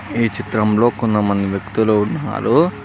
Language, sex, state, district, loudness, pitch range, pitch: Telugu, male, Telangana, Mahabubabad, -17 LUFS, 100-115 Hz, 105 Hz